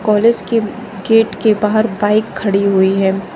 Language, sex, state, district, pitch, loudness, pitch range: Hindi, female, Uttar Pradesh, Shamli, 210 Hz, -14 LUFS, 195-220 Hz